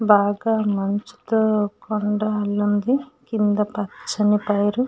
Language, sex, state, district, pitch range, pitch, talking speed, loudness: Telugu, female, Andhra Pradesh, Srikakulam, 205-220 Hz, 210 Hz, 85 wpm, -22 LUFS